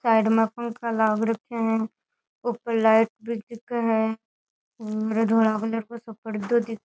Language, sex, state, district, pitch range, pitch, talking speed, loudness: Rajasthani, female, Rajasthan, Churu, 220-230 Hz, 225 Hz, 165 wpm, -24 LUFS